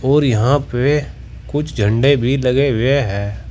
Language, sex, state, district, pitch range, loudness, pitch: Hindi, male, Uttar Pradesh, Saharanpur, 120-140 Hz, -16 LUFS, 135 Hz